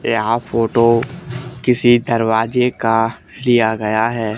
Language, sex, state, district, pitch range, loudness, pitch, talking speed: Hindi, male, Haryana, Charkhi Dadri, 110-125 Hz, -16 LUFS, 115 Hz, 110 wpm